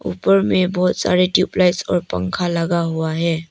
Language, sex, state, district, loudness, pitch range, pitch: Hindi, female, Arunachal Pradesh, Papum Pare, -18 LUFS, 165-180 Hz, 175 Hz